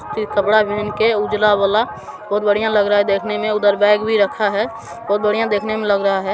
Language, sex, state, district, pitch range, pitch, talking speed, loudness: Hindi, male, Bihar, Supaul, 205-215 Hz, 210 Hz, 225 wpm, -17 LUFS